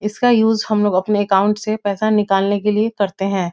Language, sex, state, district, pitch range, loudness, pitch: Hindi, female, Bihar, Muzaffarpur, 195-215 Hz, -17 LUFS, 210 Hz